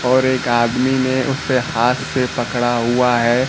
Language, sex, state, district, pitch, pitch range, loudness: Hindi, male, Bihar, Kaimur, 125 Hz, 120-130 Hz, -17 LUFS